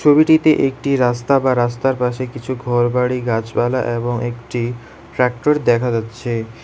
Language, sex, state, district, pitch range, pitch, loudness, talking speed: Bengali, male, West Bengal, Alipurduar, 120-130 Hz, 125 Hz, -17 LUFS, 125 wpm